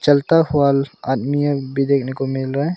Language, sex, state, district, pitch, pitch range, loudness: Hindi, male, Arunachal Pradesh, Longding, 140 Hz, 135-145 Hz, -18 LUFS